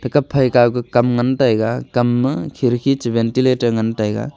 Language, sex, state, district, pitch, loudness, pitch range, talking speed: Wancho, male, Arunachal Pradesh, Longding, 125 Hz, -17 LUFS, 120-130 Hz, 150 wpm